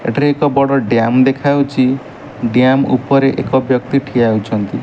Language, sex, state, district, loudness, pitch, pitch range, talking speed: Odia, male, Odisha, Malkangiri, -14 LUFS, 130 Hz, 120-140 Hz, 135 wpm